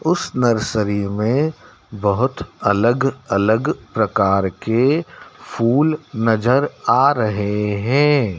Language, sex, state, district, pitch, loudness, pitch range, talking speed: Hindi, male, Madhya Pradesh, Dhar, 115 Hz, -18 LUFS, 105-140 Hz, 95 wpm